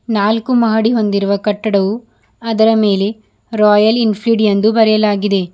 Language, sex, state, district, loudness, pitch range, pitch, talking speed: Kannada, female, Karnataka, Bidar, -13 LUFS, 205-225 Hz, 215 Hz, 120 wpm